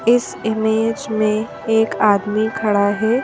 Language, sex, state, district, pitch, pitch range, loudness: Hindi, female, Madhya Pradesh, Bhopal, 220 Hz, 210-225 Hz, -18 LUFS